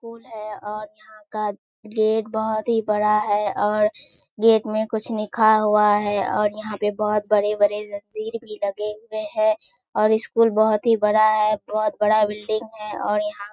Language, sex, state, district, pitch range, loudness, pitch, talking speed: Hindi, female, Bihar, Kishanganj, 210-220 Hz, -21 LUFS, 215 Hz, 175 wpm